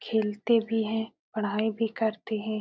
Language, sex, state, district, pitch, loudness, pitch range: Hindi, female, Uttar Pradesh, Etah, 220 Hz, -29 LUFS, 215-225 Hz